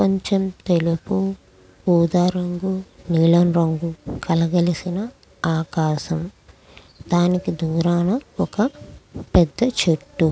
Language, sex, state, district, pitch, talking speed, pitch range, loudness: Telugu, female, Andhra Pradesh, Krishna, 170 Hz, 75 wpm, 165-180 Hz, -21 LUFS